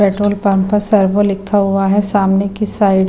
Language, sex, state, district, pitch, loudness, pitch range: Hindi, female, Himachal Pradesh, Shimla, 200 Hz, -13 LUFS, 195-205 Hz